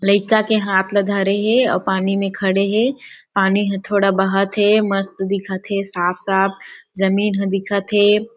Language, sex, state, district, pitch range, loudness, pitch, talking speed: Chhattisgarhi, female, Chhattisgarh, Sarguja, 195-205 Hz, -18 LUFS, 195 Hz, 165 wpm